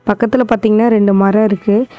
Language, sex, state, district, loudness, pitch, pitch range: Tamil, female, Tamil Nadu, Namakkal, -12 LUFS, 215 Hz, 205-235 Hz